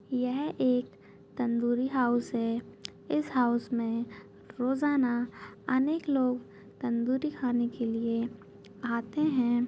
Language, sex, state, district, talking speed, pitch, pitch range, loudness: Hindi, female, Chhattisgarh, Kabirdham, 105 wpm, 245 Hz, 235-260 Hz, -30 LUFS